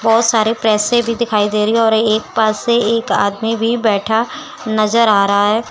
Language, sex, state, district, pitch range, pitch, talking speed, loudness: Hindi, female, Chandigarh, Chandigarh, 215-230 Hz, 220 Hz, 210 wpm, -14 LUFS